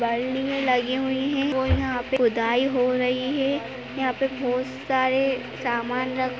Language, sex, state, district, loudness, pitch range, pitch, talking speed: Hindi, female, Uttar Pradesh, Jyotiba Phule Nagar, -24 LUFS, 250-265 Hz, 255 Hz, 130 wpm